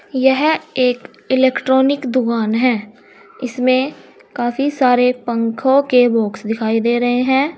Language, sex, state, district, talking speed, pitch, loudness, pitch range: Hindi, female, Uttar Pradesh, Saharanpur, 120 wpm, 250 Hz, -16 LUFS, 235-265 Hz